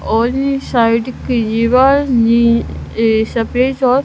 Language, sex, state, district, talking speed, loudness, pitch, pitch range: Hindi, female, Punjab, Kapurthala, 120 wpm, -14 LUFS, 235 Hz, 230-260 Hz